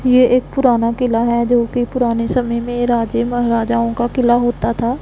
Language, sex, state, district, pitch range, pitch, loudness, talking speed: Hindi, female, Punjab, Pathankot, 235-245 Hz, 240 Hz, -16 LUFS, 180 wpm